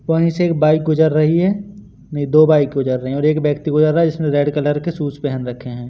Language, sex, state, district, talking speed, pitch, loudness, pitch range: Hindi, male, Madhya Pradesh, Katni, 265 wpm, 155 Hz, -16 LUFS, 145-160 Hz